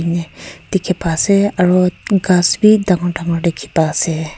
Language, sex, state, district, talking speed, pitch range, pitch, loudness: Nagamese, female, Nagaland, Kohima, 135 wpm, 165-190 Hz, 175 Hz, -15 LUFS